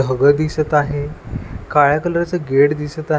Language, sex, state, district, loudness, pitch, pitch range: Marathi, male, Maharashtra, Washim, -17 LUFS, 145 Hz, 140-155 Hz